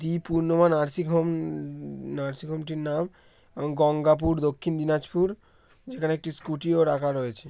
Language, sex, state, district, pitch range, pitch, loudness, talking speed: Bengali, male, West Bengal, Dakshin Dinajpur, 145-165 Hz, 155 Hz, -26 LUFS, 130 wpm